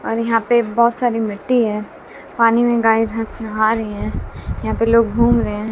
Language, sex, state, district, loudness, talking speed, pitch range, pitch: Hindi, female, Bihar, West Champaran, -17 LUFS, 210 wpm, 210-235 Hz, 225 Hz